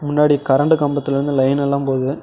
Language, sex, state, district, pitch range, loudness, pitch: Tamil, male, Tamil Nadu, Namakkal, 135-145 Hz, -17 LUFS, 140 Hz